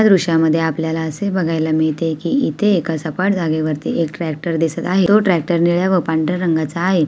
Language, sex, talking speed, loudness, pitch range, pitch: Awadhi, female, 185 wpm, -17 LUFS, 160-180 Hz, 165 Hz